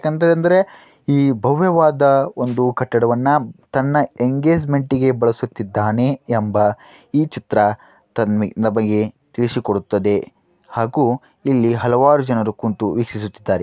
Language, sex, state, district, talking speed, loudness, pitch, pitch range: Kannada, male, Karnataka, Dharwad, 95 wpm, -18 LUFS, 125 Hz, 110-140 Hz